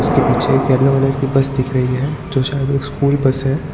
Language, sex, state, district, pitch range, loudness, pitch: Hindi, male, Gujarat, Valsad, 130-140 Hz, -16 LUFS, 135 Hz